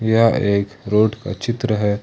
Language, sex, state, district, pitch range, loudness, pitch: Hindi, male, Jharkhand, Ranchi, 105-115 Hz, -19 LUFS, 105 Hz